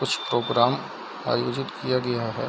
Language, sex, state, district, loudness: Hindi, male, Bihar, Darbhanga, -25 LUFS